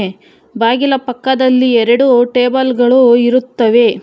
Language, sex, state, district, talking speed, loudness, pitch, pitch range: Kannada, female, Karnataka, Bangalore, 90 wpm, -11 LUFS, 250 Hz, 235-255 Hz